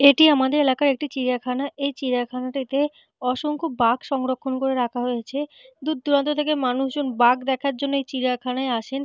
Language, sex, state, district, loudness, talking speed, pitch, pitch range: Bengali, female, Jharkhand, Jamtara, -23 LUFS, 160 wpm, 270 Hz, 250-285 Hz